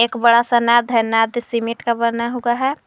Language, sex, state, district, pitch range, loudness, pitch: Hindi, female, Uttar Pradesh, Lucknow, 235-240 Hz, -17 LUFS, 235 Hz